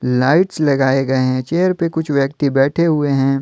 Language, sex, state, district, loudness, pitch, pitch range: Hindi, male, Jharkhand, Deoghar, -16 LUFS, 140 Hz, 135-160 Hz